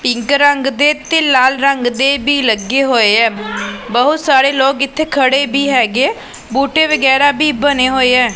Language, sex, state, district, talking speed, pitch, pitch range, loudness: Punjabi, female, Punjab, Pathankot, 170 wpm, 270 Hz, 255-285 Hz, -12 LUFS